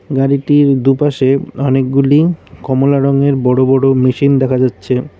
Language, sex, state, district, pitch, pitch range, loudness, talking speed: Bengali, male, West Bengal, Cooch Behar, 135 Hz, 130-140 Hz, -12 LUFS, 115 wpm